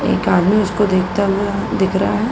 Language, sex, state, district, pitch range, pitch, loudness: Hindi, female, Uttar Pradesh, Hamirpur, 190-205 Hz, 200 Hz, -16 LUFS